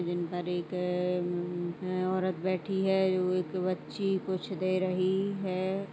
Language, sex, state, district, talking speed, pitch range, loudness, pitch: Hindi, female, Chhattisgarh, Kabirdham, 110 wpm, 180-190 Hz, -31 LUFS, 185 Hz